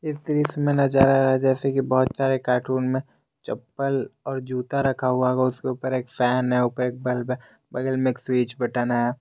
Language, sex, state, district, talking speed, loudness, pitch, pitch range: Hindi, male, Jharkhand, Garhwa, 200 wpm, -23 LUFS, 130 Hz, 125-135 Hz